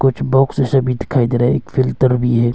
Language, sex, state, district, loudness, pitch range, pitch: Hindi, male, Arunachal Pradesh, Longding, -16 LUFS, 120-135 Hz, 130 Hz